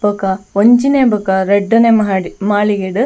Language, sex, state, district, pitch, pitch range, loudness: Tulu, female, Karnataka, Dakshina Kannada, 205 Hz, 195-230 Hz, -13 LUFS